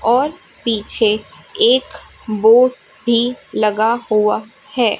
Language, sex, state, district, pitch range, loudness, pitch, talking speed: Hindi, female, Chhattisgarh, Raipur, 215-255 Hz, -16 LUFS, 235 Hz, 95 wpm